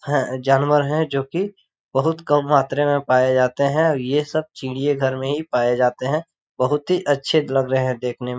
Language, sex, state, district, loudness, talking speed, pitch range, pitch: Hindi, male, Chhattisgarh, Korba, -20 LUFS, 210 wpm, 130-150 Hz, 140 Hz